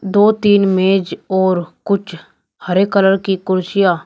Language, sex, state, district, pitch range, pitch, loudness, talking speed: Hindi, male, Uttar Pradesh, Shamli, 185-200 Hz, 190 Hz, -15 LUFS, 135 wpm